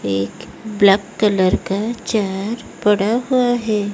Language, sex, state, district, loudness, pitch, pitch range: Hindi, female, Odisha, Malkangiri, -18 LUFS, 210 Hz, 195-225 Hz